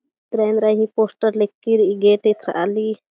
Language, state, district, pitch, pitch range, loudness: Kurukh, Chhattisgarh, Jashpur, 215 Hz, 210-220 Hz, -18 LUFS